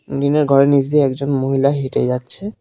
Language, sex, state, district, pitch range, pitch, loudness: Bengali, male, West Bengal, Cooch Behar, 135-145 Hz, 140 Hz, -16 LUFS